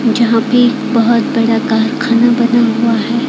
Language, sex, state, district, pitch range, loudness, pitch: Hindi, female, Odisha, Khordha, 230-245 Hz, -12 LUFS, 235 Hz